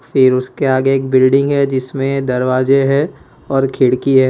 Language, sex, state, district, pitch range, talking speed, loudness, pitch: Hindi, male, Gujarat, Valsad, 130-135 Hz, 165 wpm, -14 LUFS, 135 Hz